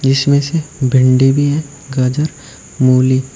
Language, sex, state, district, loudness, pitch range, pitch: Hindi, male, Uttar Pradesh, Shamli, -14 LUFS, 130-145 Hz, 135 Hz